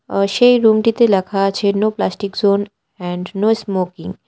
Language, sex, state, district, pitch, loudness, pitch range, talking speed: Bengali, female, West Bengal, Cooch Behar, 200 Hz, -16 LUFS, 195-220 Hz, 170 wpm